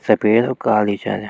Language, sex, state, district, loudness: Garhwali, male, Uttarakhand, Tehri Garhwal, -17 LUFS